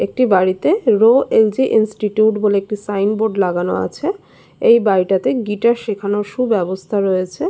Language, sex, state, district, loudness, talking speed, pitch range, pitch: Bengali, female, West Bengal, Jalpaiguri, -16 LUFS, 150 wpm, 195-235 Hz, 210 Hz